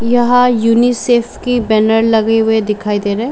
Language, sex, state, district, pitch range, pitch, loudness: Hindi, female, Jharkhand, Sahebganj, 220-245 Hz, 230 Hz, -12 LUFS